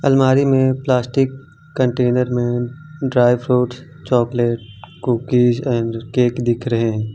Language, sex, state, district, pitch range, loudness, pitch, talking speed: Hindi, male, Jharkhand, Ranchi, 120-135 Hz, -18 LUFS, 125 Hz, 115 wpm